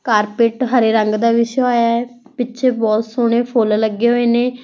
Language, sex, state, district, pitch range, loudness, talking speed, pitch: Punjabi, female, Punjab, Fazilka, 225-245 Hz, -16 LUFS, 180 wpm, 235 Hz